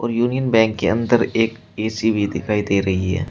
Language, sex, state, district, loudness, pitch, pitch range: Hindi, male, Uttar Pradesh, Shamli, -19 LUFS, 110 Hz, 100-115 Hz